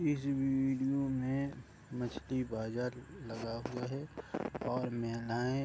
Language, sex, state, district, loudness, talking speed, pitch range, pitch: Hindi, male, Bihar, Madhepura, -37 LUFS, 115 wpm, 120-135 Hz, 125 Hz